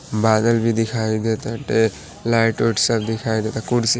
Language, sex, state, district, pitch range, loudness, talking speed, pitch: Bhojpuri, male, Uttar Pradesh, Deoria, 110-115 Hz, -20 LUFS, 195 wpm, 115 Hz